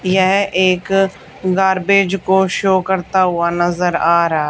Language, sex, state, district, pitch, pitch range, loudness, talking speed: Hindi, female, Haryana, Charkhi Dadri, 185 Hz, 180-190 Hz, -15 LUFS, 135 wpm